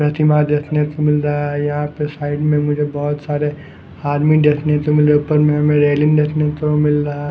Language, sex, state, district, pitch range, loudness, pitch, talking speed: Hindi, male, Punjab, Fazilka, 145-150 Hz, -16 LUFS, 150 Hz, 195 wpm